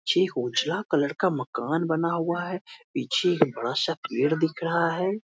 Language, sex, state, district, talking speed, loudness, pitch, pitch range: Hindi, male, Bihar, Muzaffarpur, 160 wpm, -26 LUFS, 170 Hz, 155-185 Hz